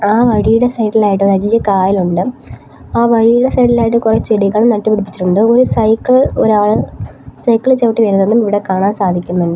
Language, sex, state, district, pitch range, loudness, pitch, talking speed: Malayalam, female, Kerala, Kollam, 195-230 Hz, -12 LUFS, 215 Hz, 125 wpm